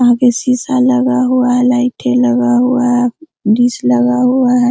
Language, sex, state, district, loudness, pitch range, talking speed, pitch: Hindi, female, Bihar, Araria, -12 LUFS, 245-255 Hz, 190 wpm, 250 Hz